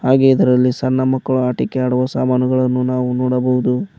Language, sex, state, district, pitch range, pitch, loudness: Kannada, male, Karnataka, Koppal, 125-130 Hz, 125 Hz, -16 LUFS